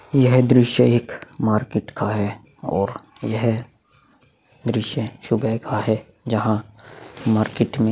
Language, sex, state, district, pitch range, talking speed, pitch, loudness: Hindi, male, Chhattisgarh, Korba, 110-125 Hz, 115 wpm, 110 Hz, -21 LUFS